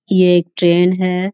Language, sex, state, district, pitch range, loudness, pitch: Hindi, female, Bihar, Jahanabad, 175-185 Hz, -14 LUFS, 180 Hz